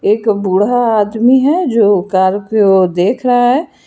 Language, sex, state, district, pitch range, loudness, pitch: Hindi, female, Karnataka, Bangalore, 195-245 Hz, -12 LUFS, 215 Hz